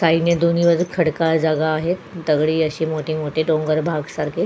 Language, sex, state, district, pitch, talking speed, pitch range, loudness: Marathi, female, Goa, North and South Goa, 160 Hz, 175 wpm, 155-170 Hz, -19 LUFS